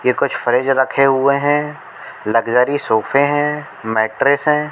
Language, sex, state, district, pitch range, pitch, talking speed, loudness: Hindi, male, Madhya Pradesh, Katni, 120-145 Hz, 135 Hz, 140 wpm, -16 LUFS